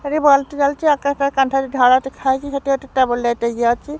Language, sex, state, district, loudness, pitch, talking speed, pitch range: Odia, male, Odisha, Khordha, -17 LUFS, 275 Hz, 165 wpm, 260-280 Hz